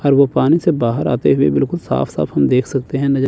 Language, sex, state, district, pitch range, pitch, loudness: Hindi, male, Chandigarh, Chandigarh, 135-145 Hz, 140 Hz, -16 LUFS